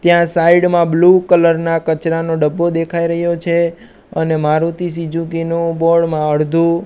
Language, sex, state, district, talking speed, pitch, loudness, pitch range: Gujarati, male, Gujarat, Gandhinagar, 150 wpm, 165 Hz, -14 LUFS, 165-170 Hz